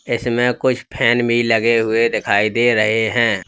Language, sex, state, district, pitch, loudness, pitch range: Hindi, male, Uttar Pradesh, Lalitpur, 115 Hz, -16 LUFS, 110-120 Hz